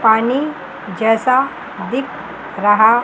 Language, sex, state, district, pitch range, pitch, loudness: Hindi, female, Chandigarh, Chandigarh, 220-255 Hz, 225 Hz, -16 LUFS